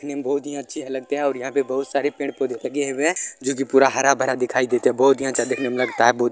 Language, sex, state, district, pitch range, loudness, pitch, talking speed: Maithili, male, Bihar, Supaul, 130-140 Hz, -21 LUFS, 135 Hz, 305 wpm